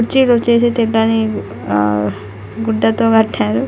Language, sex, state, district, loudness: Telugu, female, Telangana, Nalgonda, -15 LUFS